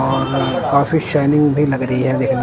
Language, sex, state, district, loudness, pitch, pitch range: Hindi, male, Punjab, Kapurthala, -16 LUFS, 135 Hz, 130-145 Hz